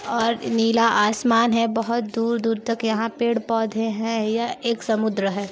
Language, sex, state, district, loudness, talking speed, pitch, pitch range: Hindi, female, Chhattisgarh, Sarguja, -22 LUFS, 150 wpm, 230 Hz, 220-230 Hz